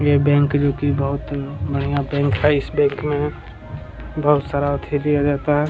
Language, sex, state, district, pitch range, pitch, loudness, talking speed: Hindi, male, Bihar, Jamui, 140-145 Hz, 145 Hz, -19 LUFS, 160 wpm